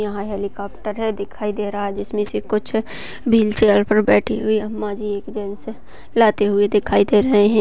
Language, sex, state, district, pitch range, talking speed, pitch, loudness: Hindi, female, Chhattisgarh, Balrampur, 205-215 Hz, 190 wpm, 210 Hz, -19 LUFS